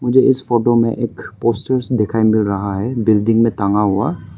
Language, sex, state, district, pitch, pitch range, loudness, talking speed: Hindi, male, Arunachal Pradesh, Papum Pare, 115 Hz, 105-120 Hz, -16 LUFS, 190 wpm